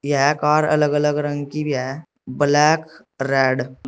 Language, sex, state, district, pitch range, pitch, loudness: Hindi, male, Uttar Pradesh, Saharanpur, 135-150 Hz, 145 Hz, -19 LUFS